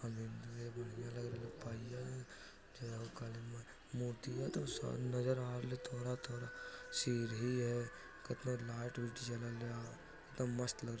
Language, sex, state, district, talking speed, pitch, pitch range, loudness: Hindi, male, Bihar, Jamui, 105 wpm, 120 Hz, 115-125 Hz, -44 LUFS